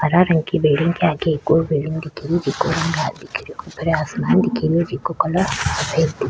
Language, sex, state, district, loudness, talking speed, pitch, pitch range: Rajasthani, female, Rajasthan, Churu, -19 LUFS, 160 wpm, 160 Hz, 150-170 Hz